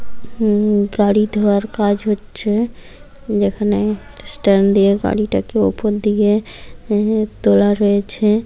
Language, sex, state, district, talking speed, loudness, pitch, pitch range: Bengali, female, West Bengal, Jhargram, 105 wpm, -16 LUFS, 210 Hz, 205-215 Hz